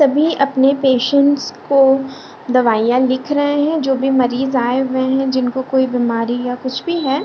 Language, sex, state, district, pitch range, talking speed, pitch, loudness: Hindi, female, Bihar, Lakhisarai, 255-280 Hz, 175 wpm, 265 Hz, -16 LUFS